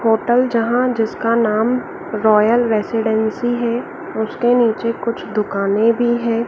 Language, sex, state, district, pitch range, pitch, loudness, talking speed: Hindi, female, Madhya Pradesh, Dhar, 220-240 Hz, 230 Hz, -17 LUFS, 120 wpm